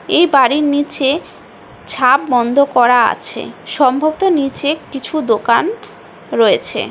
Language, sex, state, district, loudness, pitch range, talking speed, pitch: Bengali, female, West Bengal, Jhargram, -14 LUFS, 255-310 Hz, 115 wpm, 280 Hz